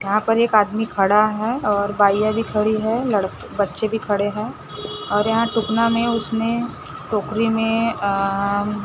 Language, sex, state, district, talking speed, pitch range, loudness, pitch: Hindi, female, Maharashtra, Gondia, 165 wpm, 205-225 Hz, -20 LUFS, 215 Hz